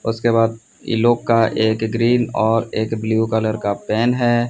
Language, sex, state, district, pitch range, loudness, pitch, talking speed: Hindi, male, Odisha, Sambalpur, 110-120 Hz, -18 LUFS, 115 Hz, 185 wpm